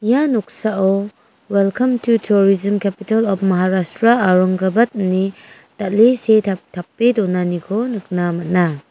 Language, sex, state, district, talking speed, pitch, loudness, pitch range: Garo, female, Meghalaya, West Garo Hills, 110 wpm, 200 Hz, -17 LUFS, 185-225 Hz